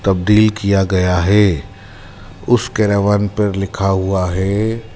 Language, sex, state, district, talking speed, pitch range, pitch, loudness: Hindi, male, Madhya Pradesh, Dhar, 120 wpm, 95-105 Hz, 100 Hz, -15 LUFS